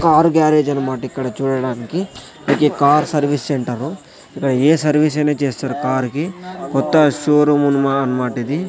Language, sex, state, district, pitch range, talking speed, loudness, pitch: Telugu, male, Andhra Pradesh, Sri Satya Sai, 135-155 Hz, 150 wpm, -17 LUFS, 145 Hz